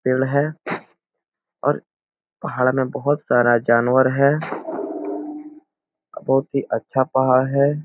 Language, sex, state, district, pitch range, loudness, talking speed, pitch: Hindi, male, Bihar, Supaul, 130-155 Hz, -20 LUFS, 105 wpm, 140 Hz